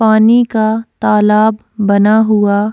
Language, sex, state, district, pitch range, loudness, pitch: Hindi, female, Goa, North and South Goa, 210-220 Hz, -11 LUFS, 215 Hz